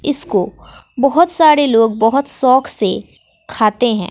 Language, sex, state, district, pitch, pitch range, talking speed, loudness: Hindi, female, Bihar, West Champaran, 260 Hz, 225-290 Hz, 130 wpm, -14 LUFS